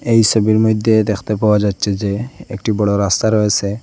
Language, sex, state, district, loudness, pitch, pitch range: Bengali, male, Assam, Hailakandi, -15 LUFS, 105 Hz, 100-110 Hz